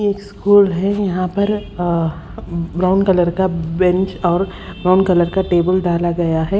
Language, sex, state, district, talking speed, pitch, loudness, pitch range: Hindi, female, Odisha, Sambalpur, 165 wpm, 185 Hz, -16 LUFS, 175-195 Hz